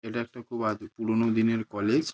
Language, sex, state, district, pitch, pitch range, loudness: Bengali, male, West Bengal, Paschim Medinipur, 115 Hz, 110-115 Hz, -28 LUFS